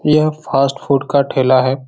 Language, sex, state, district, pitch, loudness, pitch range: Hindi, male, Bihar, Jahanabad, 140 Hz, -15 LUFS, 130-150 Hz